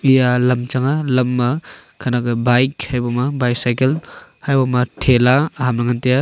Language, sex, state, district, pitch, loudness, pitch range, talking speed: Wancho, male, Arunachal Pradesh, Longding, 125 Hz, -17 LUFS, 125-130 Hz, 165 wpm